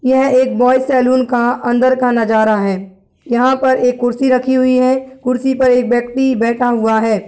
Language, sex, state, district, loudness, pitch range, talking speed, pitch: Hindi, male, Bihar, Jahanabad, -13 LUFS, 240-260 Hz, 190 wpm, 250 Hz